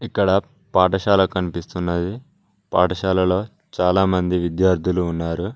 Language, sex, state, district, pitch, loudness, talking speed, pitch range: Telugu, male, Telangana, Mahabubabad, 90 Hz, -20 LUFS, 75 wpm, 90-95 Hz